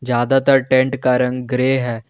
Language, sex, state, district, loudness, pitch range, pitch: Hindi, male, Jharkhand, Garhwa, -16 LUFS, 125-135 Hz, 130 Hz